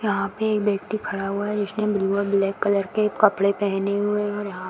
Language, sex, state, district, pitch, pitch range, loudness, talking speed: Hindi, female, Uttar Pradesh, Varanasi, 205 Hz, 195-210 Hz, -23 LUFS, 270 wpm